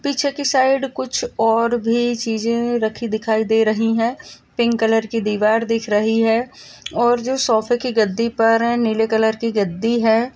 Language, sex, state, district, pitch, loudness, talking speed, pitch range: Hindi, female, Maharashtra, Solapur, 230 Hz, -18 LUFS, 170 wpm, 220-240 Hz